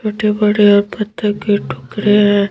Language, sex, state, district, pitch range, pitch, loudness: Hindi, female, Madhya Pradesh, Bhopal, 205-210 Hz, 210 Hz, -14 LUFS